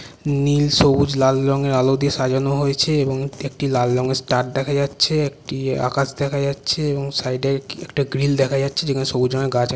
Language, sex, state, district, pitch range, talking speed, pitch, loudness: Bengali, male, West Bengal, Purulia, 130-140 Hz, 195 wpm, 135 Hz, -20 LUFS